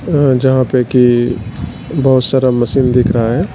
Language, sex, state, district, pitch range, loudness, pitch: Hindi, male, Bihar, Katihar, 120-130 Hz, -12 LUFS, 125 Hz